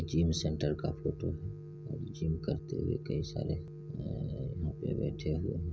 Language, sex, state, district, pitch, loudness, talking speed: Hindi, male, Bihar, Saran, 80 Hz, -36 LUFS, 180 wpm